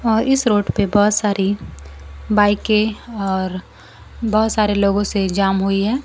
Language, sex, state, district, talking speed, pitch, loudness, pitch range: Hindi, female, Bihar, Kaimur, 150 wpm, 205 Hz, -18 LUFS, 195-215 Hz